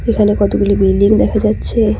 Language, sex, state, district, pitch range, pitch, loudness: Bengali, female, West Bengal, Cooch Behar, 200-215 Hz, 205 Hz, -13 LUFS